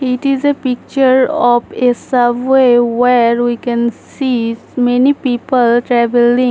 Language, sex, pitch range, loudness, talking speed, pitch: English, female, 240-260 Hz, -13 LUFS, 130 wpm, 245 Hz